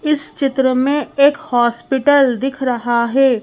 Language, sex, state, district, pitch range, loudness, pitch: Hindi, female, Madhya Pradesh, Bhopal, 245-285 Hz, -15 LUFS, 270 Hz